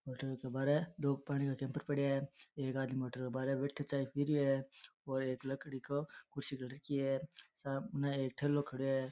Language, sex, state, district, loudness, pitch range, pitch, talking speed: Rajasthani, male, Rajasthan, Nagaur, -39 LUFS, 135-140 Hz, 135 Hz, 210 wpm